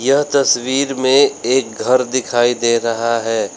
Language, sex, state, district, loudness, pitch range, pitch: Hindi, male, Uttar Pradesh, Lalitpur, -15 LUFS, 115-135 Hz, 125 Hz